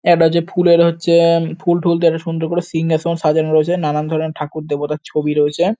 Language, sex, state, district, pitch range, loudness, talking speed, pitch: Bengali, male, West Bengal, North 24 Parganas, 155-170 Hz, -16 LUFS, 195 wpm, 165 Hz